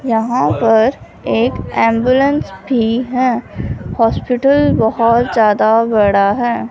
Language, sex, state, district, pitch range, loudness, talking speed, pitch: Hindi, female, Punjab, Fazilka, 225-255 Hz, -14 LUFS, 100 wpm, 230 Hz